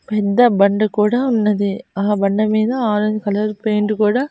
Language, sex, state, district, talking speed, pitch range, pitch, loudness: Telugu, female, Andhra Pradesh, Annamaya, 165 wpm, 205-220 Hz, 215 Hz, -17 LUFS